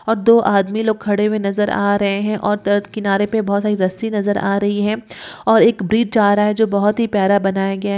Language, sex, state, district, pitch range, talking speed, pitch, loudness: Hindi, female, Uttar Pradesh, Jyotiba Phule Nagar, 200-220 Hz, 255 wpm, 205 Hz, -17 LUFS